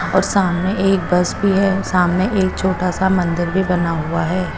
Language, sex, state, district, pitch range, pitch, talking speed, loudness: Hindi, female, Chandigarh, Chandigarh, 180-190 Hz, 185 Hz, 195 wpm, -17 LUFS